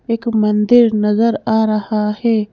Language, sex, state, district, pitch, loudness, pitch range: Hindi, female, Madhya Pradesh, Bhopal, 220 Hz, -15 LUFS, 210-230 Hz